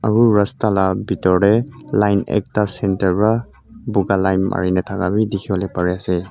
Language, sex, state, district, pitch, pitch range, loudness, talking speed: Nagamese, male, Mizoram, Aizawl, 100 Hz, 95-110 Hz, -18 LUFS, 170 wpm